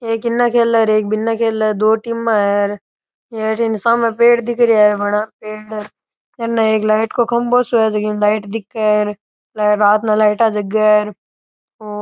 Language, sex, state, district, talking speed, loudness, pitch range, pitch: Rajasthani, male, Rajasthan, Nagaur, 205 wpm, -15 LUFS, 210-230 Hz, 215 Hz